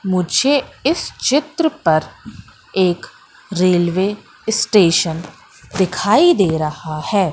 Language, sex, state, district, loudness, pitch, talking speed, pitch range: Hindi, female, Madhya Pradesh, Katni, -17 LUFS, 190 Hz, 90 wpm, 170-230 Hz